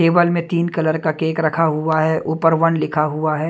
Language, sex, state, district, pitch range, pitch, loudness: Hindi, male, Haryana, Jhajjar, 155-165 Hz, 160 Hz, -18 LUFS